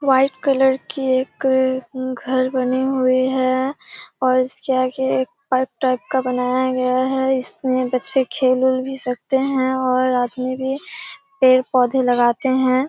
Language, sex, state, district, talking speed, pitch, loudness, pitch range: Hindi, female, Bihar, Kishanganj, 155 wpm, 260 Hz, -19 LUFS, 255-265 Hz